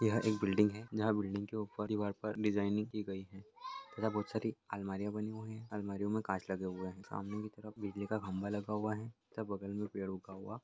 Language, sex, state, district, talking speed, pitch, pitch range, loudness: Hindi, male, Chhattisgarh, Raigarh, 235 wpm, 105 Hz, 100-110 Hz, -39 LUFS